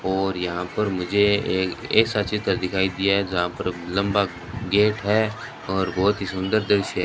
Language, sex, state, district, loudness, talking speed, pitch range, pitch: Hindi, male, Rajasthan, Bikaner, -23 LUFS, 180 wpm, 95-105 Hz, 100 Hz